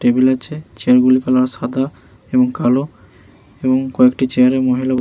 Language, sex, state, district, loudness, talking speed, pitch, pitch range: Bengali, male, West Bengal, Paschim Medinipur, -15 LUFS, 180 wpm, 130 Hz, 125-130 Hz